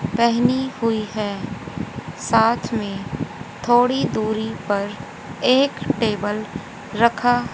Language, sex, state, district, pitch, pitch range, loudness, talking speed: Hindi, female, Haryana, Jhajjar, 225 Hz, 210-245 Hz, -21 LUFS, 85 wpm